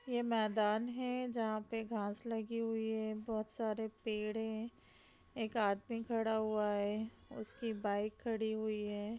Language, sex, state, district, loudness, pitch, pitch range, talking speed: Hindi, female, Jharkhand, Sahebganj, -39 LUFS, 220 Hz, 215-230 Hz, 150 wpm